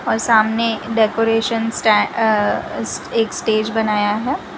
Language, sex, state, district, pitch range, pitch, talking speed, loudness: Hindi, female, Gujarat, Valsad, 215-225 Hz, 225 Hz, 120 wpm, -17 LUFS